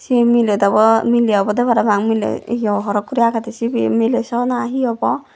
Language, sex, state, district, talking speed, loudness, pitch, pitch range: Chakma, female, Tripura, Dhalai, 200 wpm, -16 LUFS, 230 Hz, 210-240 Hz